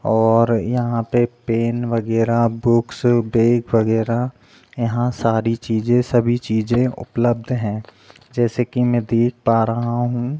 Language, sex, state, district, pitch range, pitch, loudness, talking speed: Hindi, male, Chhattisgarh, Rajnandgaon, 115-120 Hz, 120 Hz, -19 LUFS, 135 wpm